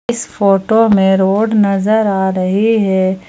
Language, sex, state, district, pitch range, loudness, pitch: Hindi, female, Jharkhand, Ranchi, 190-220 Hz, -13 LUFS, 200 Hz